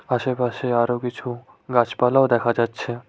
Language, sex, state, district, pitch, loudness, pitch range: Bengali, male, West Bengal, Cooch Behar, 120 Hz, -21 LUFS, 120-125 Hz